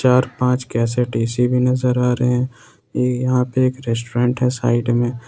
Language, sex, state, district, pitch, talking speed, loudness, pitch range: Hindi, male, Jharkhand, Ranchi, 125 Hz, 180 wpm, -19 LUFS, 120-125 Hz